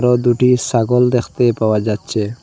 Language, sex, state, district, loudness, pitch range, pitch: Bengali, male, Assam, Hailakandi, -15 LUFS, 110-125 Hz, 120 Hz